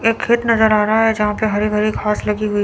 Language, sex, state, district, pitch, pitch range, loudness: Hindi, female, Chandigarh, Chandigarh, 215 Hz, 210-225 Hz, -16 LUFS